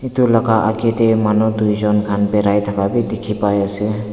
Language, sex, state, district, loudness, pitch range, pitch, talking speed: Nagamese, male, Nagaland, Dimapur, -16 LUFS, 105-115 Hz, 105 Hz, 190 wpm